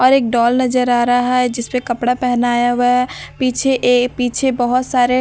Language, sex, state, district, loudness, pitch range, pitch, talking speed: Hindi, female, Bihar, Katihar, -15 LUFS, 245-255 Hz, 245 Hz, 195 wpm